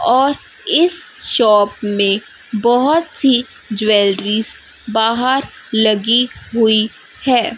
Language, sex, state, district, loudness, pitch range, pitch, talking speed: Hindi, female, Chhattisgarh, Raipur, -15 LUFS, 215-260 Hz, 230 Hz, 85 wpm